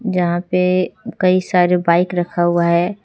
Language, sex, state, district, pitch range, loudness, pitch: Hindi, female, Jharkhand, Deoghar, 175-185 Hz, -16 LUFS, 180 Hz